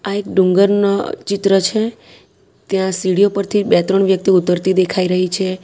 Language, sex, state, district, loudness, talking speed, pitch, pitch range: Gujarati, female, Gujarat, Valsad, -15 LUFS, 170 wpm, 195 Hz, 185-200 Hz